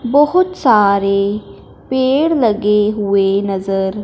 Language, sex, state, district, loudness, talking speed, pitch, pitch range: Hindi, female, Punjab, Fazilka, -14 LUFS, 90 wpm, 210 Hz, 200-260 Hz